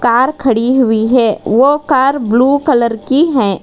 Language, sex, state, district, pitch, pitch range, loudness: Hindi, female, Karnataka, Bangalore, 255 Hz, 230-275 Hz, -12 LUFS